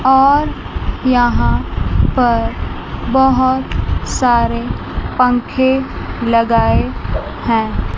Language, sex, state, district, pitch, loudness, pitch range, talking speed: Hindi, female, Chandigarh, Chandigarh, 250 Hz, -15 LUFS, 235-265 Hz, 60 wpm